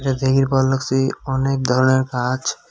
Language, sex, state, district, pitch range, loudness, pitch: Bengali, male, West Bengal, Cooch Behar, 130-135 Hz, -19 LUFS, 130 Hz